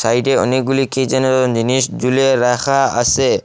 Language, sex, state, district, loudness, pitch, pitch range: Bengali, male, Assam, Hailakandi, -15 LUFS, 130 Hz, 125-135 Hz